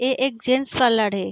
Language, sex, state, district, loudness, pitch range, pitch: Hindi, female, Bihar, Sitamarhi, -20 LUFS, 225-265 Hz, 255 Hz